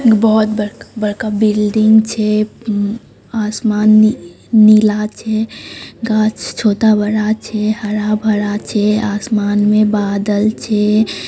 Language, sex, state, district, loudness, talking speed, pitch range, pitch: Maithili, female, Bihar, Samastipur, -14 LUFS, 95 wpm, 210-220 Hz, 215 Hz